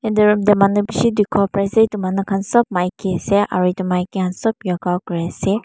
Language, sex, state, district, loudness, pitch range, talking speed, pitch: Nagamese, female, Mizoram, Aizawl, -18 LUFS, 180-210 Hz, 235 wpm, 195 Hz